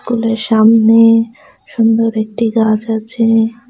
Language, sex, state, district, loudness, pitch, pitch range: Bengali, female, West Bengal, Cooch Behar, -12 LUFS, 225 Hz, 225-230 Hz